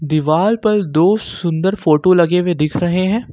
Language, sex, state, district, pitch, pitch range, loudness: Hindi, male, Jharkhand, Ranchi, 175 Hz, 160-200 Hz, -15 LUFS